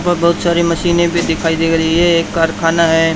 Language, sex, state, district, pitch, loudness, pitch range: Hindi, male, Haryana, Charkhi Dadri, 170 Hz, -13 LUFS, 165-170 Hz